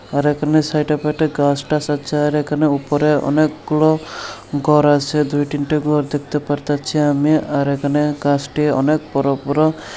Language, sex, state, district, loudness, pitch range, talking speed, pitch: Bengali, male, Tripura, Unakoti, -17 LUFS, 145-150 Hz, 140 wpm, 150 Hz